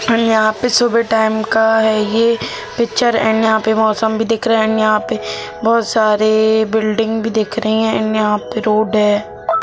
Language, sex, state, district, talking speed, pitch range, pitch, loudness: Hindi, female, Bihar, Gopalganj, 195 wpm, 215-225 Hz, 220 Hz, -15 LUFS